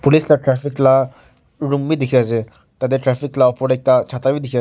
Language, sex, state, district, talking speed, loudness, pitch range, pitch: Nagamese, male, Nagaland, Kohima, 220 wpm, -17 LUFS, 125-140 Hz, 130 Hz